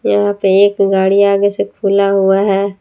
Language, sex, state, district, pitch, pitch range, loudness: Hindi, female, Jharkhand, Palamu, 195 Hz, 195-200 Hz, -12 LUFS